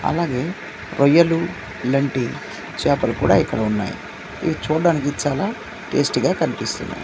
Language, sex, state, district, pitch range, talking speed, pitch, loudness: Telugu, male, Andhra Pradesh, Manyam, 125-165 Hz, 110 wpm, 145 Hz, -20 LUFS